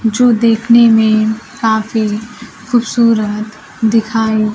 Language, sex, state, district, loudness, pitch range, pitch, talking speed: Hindi, female, Bihar, Kaimur, -13 LUFS, 215-230 Hz, 225 Hz, 80 wpm